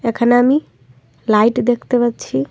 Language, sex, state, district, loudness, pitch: Bengali, female, Tripura, Dhalai, -15 LUFS, 230 Hz